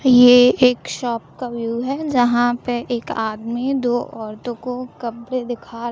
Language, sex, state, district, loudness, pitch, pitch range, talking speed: Hindi, female, Chhattisgarh, Raipur, -19 LUFS, 245 Hz, 235-250 Hz, 150 wpm